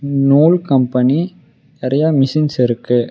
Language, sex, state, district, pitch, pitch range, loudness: Tamil, male, Tamil Nadu, Namakkal, 140 Hz, 125-155 Hz, -14 LUFS